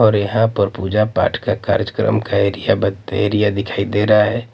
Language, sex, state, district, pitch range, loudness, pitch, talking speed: Hindi, male, Maharashtra, Mumbai Suburban, 100-110 Hz, -17 LUFS, 105 Hz, 185 wpm